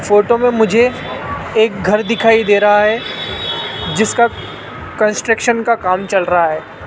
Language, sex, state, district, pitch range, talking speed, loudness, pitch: Hindi, male, Rajasthan, Jaipur, 205-230 Hz, 140 wpm, -14 LUFS, 220 Hz